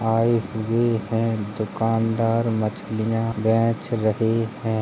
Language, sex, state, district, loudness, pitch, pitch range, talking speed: Hindi, male, Uttar Pradesh, Jalaun, -23 LUFS, 115 Hz, 110-115 Hz, 100 wpm